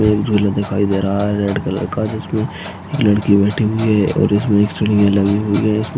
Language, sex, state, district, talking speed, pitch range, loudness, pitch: Hindi, male, Uttarakhand, Uttarkashi, 220 wpm, 100-105 Hz, -16 LUFS, 105 Hz